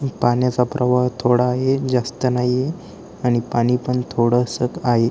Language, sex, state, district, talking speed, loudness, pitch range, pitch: Marathi, male, Maharashtra, Aurangabad, 130 wpm, -19 LUFS, 120-125 Hz, 125 Hz